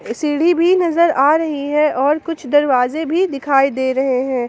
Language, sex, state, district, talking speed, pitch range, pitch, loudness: Hindi, female, Jharkhand, Palamu, 185 wpm, 265-325 Hz, 290 Hz, -16 LUFS